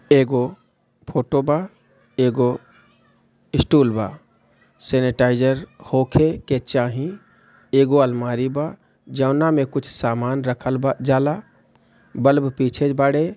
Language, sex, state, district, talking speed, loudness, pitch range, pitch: Bhojpuri, male, Bihar, Gopalganj, 105 wpm, -20 LUFS, 125-145 Hz, 135 Hz